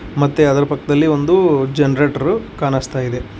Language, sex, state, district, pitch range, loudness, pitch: Kannada, male, Karnataka, Koppal, 135-145 Hz, -16 LUFS, 145 Hz